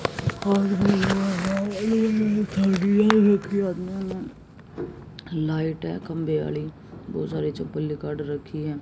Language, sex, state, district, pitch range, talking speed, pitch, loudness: Hindi, female, Haryana, Jhajjar, 155-200 Hz, 70 wpm, 195 Hz, -24 LUFS